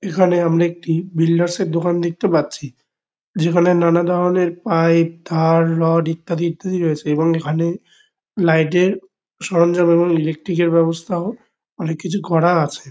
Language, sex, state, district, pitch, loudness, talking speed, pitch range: Bengali, male, West Bengal, Kolkata, 170 Hz, -17 LUFS, 130 wpm, 165-180 Hz